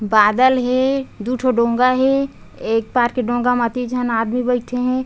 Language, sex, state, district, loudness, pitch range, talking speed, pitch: Chhattisgarhi, female, Chhattisgarh, Bastar, -18 LUFS, 235-255 Hz, 190 wpm, 250 Hz